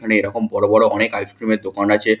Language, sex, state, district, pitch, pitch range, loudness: Bengali, male, West Bengal, Kolkata, 105 Hz, 100-110 Hz, -17 LUFS